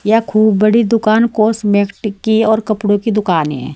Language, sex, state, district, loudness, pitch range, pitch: Hindi, female, Uttar Pradesh, Saharanpur, -13 LUFS, 205-220 Hz, 215 Hz